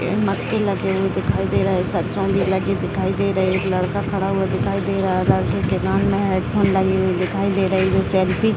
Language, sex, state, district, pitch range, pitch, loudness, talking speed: Hindi, female, Bihar, Gopalganj, 185-195 Hz, 190 Hz, -20 LUFS, 230 wpm